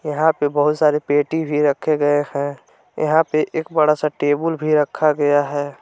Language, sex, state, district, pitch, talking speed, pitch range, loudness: Hindi, male, Jharkhand, Palamu, 150 Hz, 195 wpm, 145-155 Hz, -18 LUFS